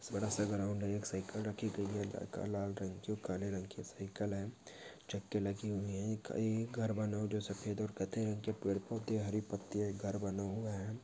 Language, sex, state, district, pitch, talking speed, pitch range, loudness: Hindi, male, Maharashtra, Pune, 105 Hz, 215 wpm, 100-105 Hz, -40 LUFS